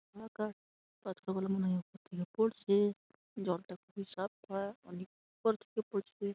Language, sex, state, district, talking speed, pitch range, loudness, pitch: Bengali, male, West Bengal, Malda, 95 wpm, 190-210 Hz, -38 LUFS, 200 Hz